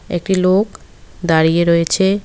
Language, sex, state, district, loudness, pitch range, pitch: Bengali, female, West Bengal, Cooch Behar, -15 LUFS, 170-190 Hz, 180 Hz